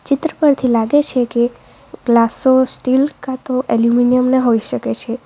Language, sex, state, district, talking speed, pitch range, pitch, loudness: Gujarati, female, Gujarat, Valsad, 160 wpm, 235-260 Hz, 250 Hz, -15 LUFS